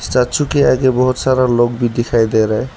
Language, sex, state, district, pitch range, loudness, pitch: Hindi, male, Arunachal Pradesh, Lower Dibang Valley, 115-130 Hz, -14 LUFS, 125 Hz